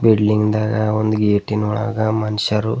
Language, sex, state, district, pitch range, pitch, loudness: Kannada, male, Karnataka, Bidar, 105-110 Hz, 110 Hz, -18 LUFS